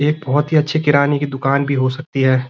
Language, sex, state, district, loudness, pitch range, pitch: Hindi, male, Uttarakhand, Uttarkashi, -17 LUFS, 135-150 Hz, 140 Hz